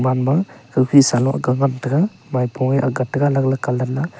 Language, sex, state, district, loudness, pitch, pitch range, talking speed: Wancho, male, Arunachal Pradesh, Longding, -18 LUFS, 130 Hz, 130-140 Hz, 215 wpm